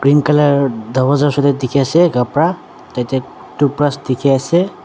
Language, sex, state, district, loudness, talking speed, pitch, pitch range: Nagamese, male, Nagaland, Dimapur, -15 LUFS, 135 wpm, 140 Hz, 130-145 Hz